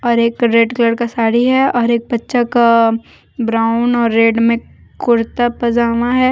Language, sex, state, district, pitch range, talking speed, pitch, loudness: Hindi, female, Jharkhand, Deoghar, 230-240 Hz, 170 wpm, 235 Hz, -14 LUFS